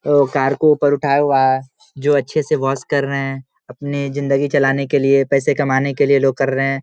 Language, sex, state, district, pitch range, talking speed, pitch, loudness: Hindi, male, Bihar, Samastipur, 135-145 Hz, 245 wpm, 140 Hz, -17 LUFS